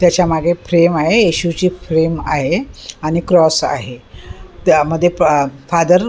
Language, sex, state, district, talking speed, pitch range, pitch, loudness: Marathi, female, Maharashtra, Mumbai Suburban, 140 wpm, 145-175 Hz, 165 Hz, -14 LUFS